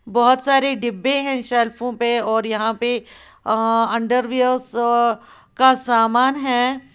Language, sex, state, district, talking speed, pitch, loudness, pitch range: Hindi, female, Uttar Pradesh, Lalitpur, 120 wpm, 240 Hz, -18 LUFS, 230-255 Hz